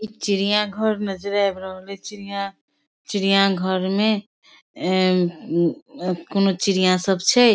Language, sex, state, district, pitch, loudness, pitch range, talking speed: Maithili, female, Bihar, Darbhanga, 195 Hz, -21 LUFS, 185-205 Hz, 125 wpm